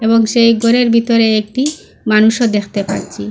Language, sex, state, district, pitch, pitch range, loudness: Bengali, female, Assam, Hailakandi, 225 Hz, 215-235 Hz, -13 LUFS